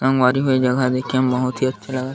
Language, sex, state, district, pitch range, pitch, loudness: Chhattisgarhi, male, Chhattisgarh, Sarguja, 125-130 Hz, 130 Hz, -19 LUFS